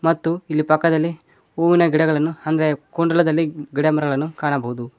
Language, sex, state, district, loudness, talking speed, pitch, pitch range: Kannada, male, Karnataka, Koppal, -19 LUFS, 110 wpm, 155 Hz, 150-165 Hz